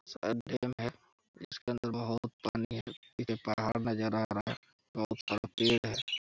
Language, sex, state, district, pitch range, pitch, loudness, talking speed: Hindi, male, Jharkhand, Jamtara, 110-120 Hz, 115 Hz, -35 LUFS, 75 wpm